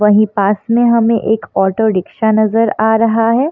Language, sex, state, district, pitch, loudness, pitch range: Hindi, female, Bihar, East Champaran, 220 Hz, -13 LUFS, 210-230 Hz